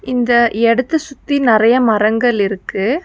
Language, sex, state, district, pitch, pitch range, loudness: Tamil, female, Tamil Nadu, Nilgiris, 235 Hz, 220-255 Hz, -14 LUFS